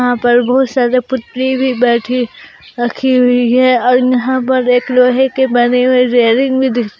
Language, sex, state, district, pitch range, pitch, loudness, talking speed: Hindi, female, Jharkhand, Garhwa, 245-260 Hz, 250 Hz, -12 LUFS, 170 wpm